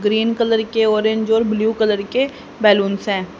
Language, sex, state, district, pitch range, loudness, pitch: Hindi, female, Haryana, Jhajjar, 210-225 Hz, -17 LUFS, 220 Hz